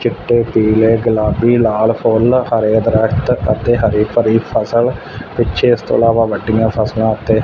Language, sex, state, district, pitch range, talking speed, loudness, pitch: Punjabi, male, Punjab, Fazilka, 110-115 Hz, 135 wpm, -13 LUFS, 110 Hz